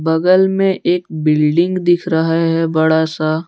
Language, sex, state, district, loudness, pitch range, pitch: Hindi, male, Jharkhand, Deoghar, -14 LUFS, 160-175 Hz, 165 Hz